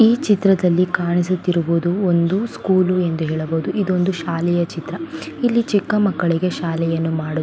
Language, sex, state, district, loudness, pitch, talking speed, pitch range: Kannada, female, Karnataka, Belgaum, -19 LUFS, 175 Hz, 135 wpm, 165-190 Hz